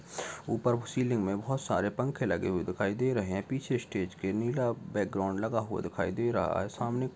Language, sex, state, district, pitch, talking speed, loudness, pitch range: Hindi, male, Uttar Pradesh, Budaun, 115 Hz, 225 wpm, -32 LUFS, 100-125 Hz